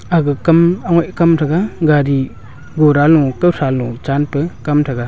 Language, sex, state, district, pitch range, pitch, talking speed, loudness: Wancho, male, Arunachal Pradesh, Longding, 135-170 Hz, 150 Hz, 130 wpm, -14 LUFS